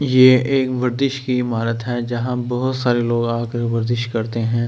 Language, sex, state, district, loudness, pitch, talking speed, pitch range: Hindi, male, Delhi, New Delhi, -19 LUFS, 120 Hz, 190 wpm, 115-130 Hz